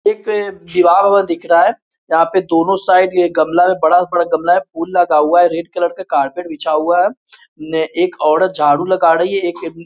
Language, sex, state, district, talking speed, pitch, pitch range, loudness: Hindi, male, Bihar, Muzaffarpur, 225 wpm, 175 Hz, 165-185 Hz, -14 LUFS